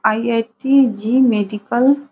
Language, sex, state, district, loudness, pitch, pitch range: Maithili, female, Bihar, Saharsa, -16 LUFS, 235 Hz, 220-265 Hz